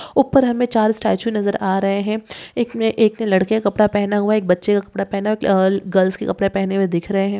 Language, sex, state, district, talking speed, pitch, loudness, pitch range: Hindi, female, Rajasthan, Nagaur, 225 wpm, 205 Hz, -18 LUFS, 195-220 Hz